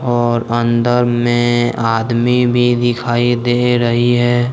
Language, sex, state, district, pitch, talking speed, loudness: Hindi, male, Jharkhand, Deoghar, 120 Hz, 120 wpm, -14 LUFS